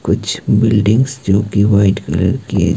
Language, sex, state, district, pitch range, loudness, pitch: Hindi, male, Himachal Pradesh, Shimla, 100-110 Hz, -14 LUFS, 105 Hz